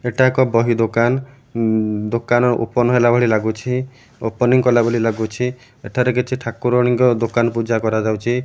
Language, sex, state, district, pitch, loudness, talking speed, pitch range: Odia, male, Odisha, Malkangiri, 120 Hz, -17 LUFS, 140 wpm, 115-125 Hz